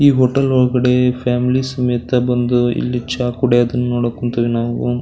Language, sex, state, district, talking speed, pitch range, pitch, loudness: Kannada, male, Karnataka, Belgaum, 145 wpm, 120-125 Hz, 125 Hz, -16 LUFS